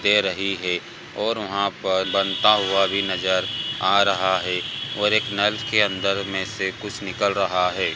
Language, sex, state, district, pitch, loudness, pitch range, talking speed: Hindi, male, Bihar, Bhagalpur, 100 Hz, -22 LUFS, 95-105 Hz, 180 wpm